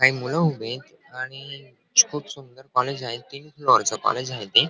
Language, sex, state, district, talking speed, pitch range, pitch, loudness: Marathi, male, Maharashtra, Dhule, 190 wpm, 125-140 Hz, 130 Hz, -23 LUFS